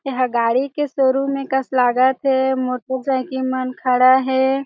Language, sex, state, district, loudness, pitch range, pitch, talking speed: Chhattisgarhi, female, Chhattisgarh, Jashpur, -18 LUFS, 255-265 Hz, 260 Hz, 155 wpm